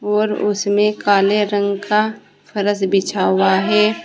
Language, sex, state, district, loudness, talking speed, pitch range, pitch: Hindi, female, Uttar Pradesh, Saharanpur, -17 LUFS, 135 wpm, 200-210 Hz, 205 Hz